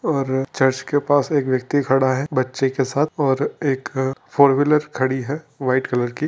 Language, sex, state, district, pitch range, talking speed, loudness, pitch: Hindi, male, Andhra Pradesh, Chittoor, 130-145 Hz, 180 wpm, -20 LUFS, 135 Hz